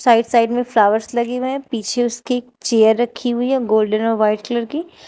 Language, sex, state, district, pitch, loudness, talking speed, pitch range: Hindi, female, Uttar Pradesh, Shamli, 235 Hz, -18 LUFS, 210 wpm, 220-250 Hz